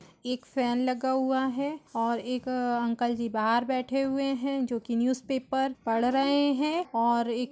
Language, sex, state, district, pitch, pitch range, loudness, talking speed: Hindi, female, Chhattisgarh, Raigarh, 255 Hz, 235-270 Hz, -28 LUFS, 160 wpm